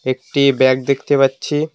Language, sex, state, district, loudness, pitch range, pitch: Bengali, male, West Bengal, Alipurduar, -16 LUFS, 130-145 Hz, 140 Hz